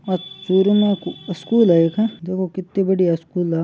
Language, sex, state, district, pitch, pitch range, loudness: Marwari, male, Rajasthan, Churu, 185 Hz, 175-195 Hz, -19 LUFS